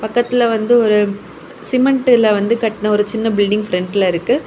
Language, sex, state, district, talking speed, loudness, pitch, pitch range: Tamil, female, Tamil Nadu, Kanyakumari, 145 wpm, -15 LUFS, 220 Hz, 205-240 Hz